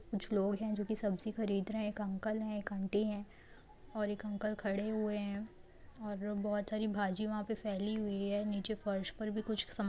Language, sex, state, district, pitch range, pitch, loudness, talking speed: Hindi, female, Jharkhand, Jamtara, 205-215 Hz, 210 Hz, -38 LUFS, 230 wpm